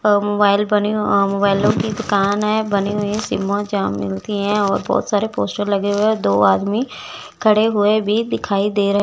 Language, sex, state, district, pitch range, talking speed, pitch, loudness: Hindi, female, Chandigarh, Chandigarh, 200-215 Hz, 205 wpm, 205 Hz, -18 LUFS